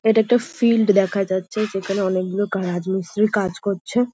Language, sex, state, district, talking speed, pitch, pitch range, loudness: Bengali, female, West Bengal, Jhargram, 160 wpm, 200 Hz, 190-220 Hz, -20 LUFS